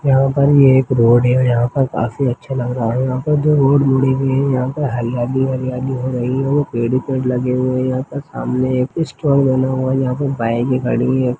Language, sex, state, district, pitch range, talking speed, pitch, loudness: Hindi, male, Chhattisgarh, Jashpur, 125-135 Hz, 235 wpm, 130 Hz, -16 LUFS